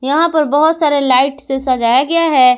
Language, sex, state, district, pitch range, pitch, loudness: Hindi, female, Jharkhand, Garhwa, 255-315 Hz, 280 Hz, -13 LUFS